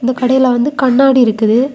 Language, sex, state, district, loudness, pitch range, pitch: Tamil, female, Tamil Nadu, Kanyakumari, -11 LUFS, 245-265 Hz, 255 Hz